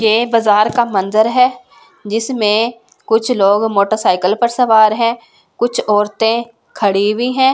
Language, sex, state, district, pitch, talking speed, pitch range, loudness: Hindi, female, Delhi, New Delhi, 225 Hz, 135 wpm, 210-235 Hz, -14 LUFS